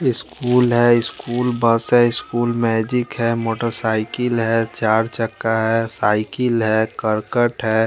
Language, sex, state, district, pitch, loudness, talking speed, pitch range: Hindi, male, Chandigarh, Chandigarh, 115 Hz, -19 LUFS, 130 wpm, 110-120 Hz